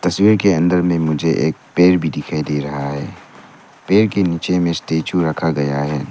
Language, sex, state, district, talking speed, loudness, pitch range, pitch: Hindi, male, Arunachal Pradesh, Lower Dibang Valley, 195 wpm, -17 LUFS, 75-90 Hz, 80 Hz